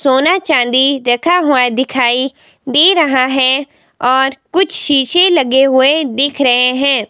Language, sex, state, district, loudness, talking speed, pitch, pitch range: Hindi, female, Himachal Pradesh, Shimla, -12 LUFS, 135 wpm, 270 Hz, 255-305 Hz